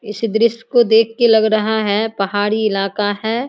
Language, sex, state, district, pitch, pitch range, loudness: Hindi, female, Bihar, Samastipur, 220 Hz, 210-225 Hz, -16 LUFS